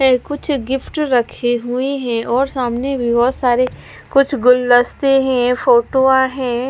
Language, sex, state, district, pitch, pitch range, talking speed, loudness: Hindi, female, Punjab, Fazilka, 255 Hz, 245-270 Hz, 150 wpm, -16 LUFS